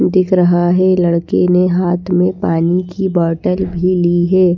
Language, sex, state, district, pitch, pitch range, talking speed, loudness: Hindi, female, Bihar, Patna, 180 Hz, 175-185 Hz, 170 wpm, -14 LUFS